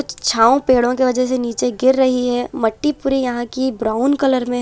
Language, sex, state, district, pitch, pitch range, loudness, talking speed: Hindi, female, Chhattisgarh, Raipur, 250 Hz, 245-260 Hz, -17 LUFS, 210 wpm